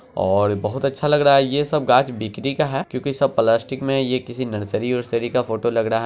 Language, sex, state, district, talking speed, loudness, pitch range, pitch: Hindi, male, Bihar, Araria, 240 wpm, -20 LUFS, 115-135 Hz, 125 Hz